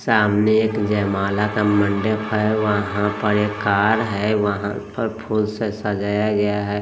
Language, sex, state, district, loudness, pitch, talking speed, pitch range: Hindi, male, Bihar, Katihar, -20 LUFS, 105 Hz, 160 wpm, 100-110 Hz